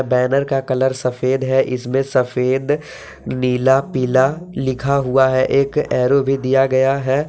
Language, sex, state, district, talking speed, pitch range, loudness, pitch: Hindi, male, Jharkhand, Deoghar, 150 wpm, 130-135 Hz, -17 LUFS, 130 Hz